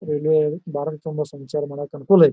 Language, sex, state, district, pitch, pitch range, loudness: Kannada, male, Karnataka, Bijapur, 150 Hz, 145-155 Hz, -22 LUFS